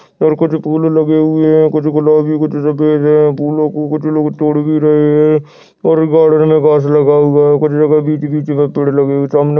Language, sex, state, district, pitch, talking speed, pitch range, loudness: Hindi, male, Uttarakhand, Uttarkashi, 150 Hz, 230 wpm, 150-155 Hz, -11 LUFS